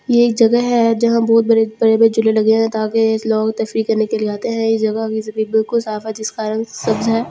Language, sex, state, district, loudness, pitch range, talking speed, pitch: Hindi, female, Delhi, New Delhi, -16 LUFS, 220-230 Hz, 195 wpm, 225 Hz